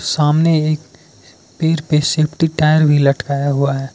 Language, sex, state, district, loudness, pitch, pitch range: Hindi, male, Arunachal Pradesh, Lower Dibang Valley, -15 LUFS, 150 Hz, 140-155 Hz